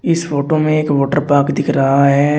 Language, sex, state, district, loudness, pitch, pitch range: Hindi, male, Uttar Pradesh, Shamli, -14 LUFS, 145 Hz, 140-155 Hz